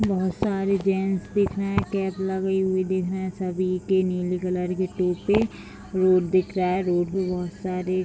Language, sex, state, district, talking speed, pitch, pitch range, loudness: Hindi, female, Bihar, Vaishali, 200 wpm, 185 Hz, 180-190 Hz, -24 LUFS